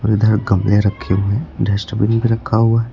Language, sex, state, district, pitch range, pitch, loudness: Hindi, male, Uttar Pradesh, Lucknow, 100-115 Hz, 105 Hz, -16 LUFS